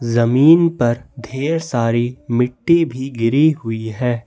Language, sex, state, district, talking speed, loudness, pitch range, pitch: Hindi, male, Jharkhand, Ranchi, 125 wpm, -17 LUFS, 120-145 Hz, 125 Hz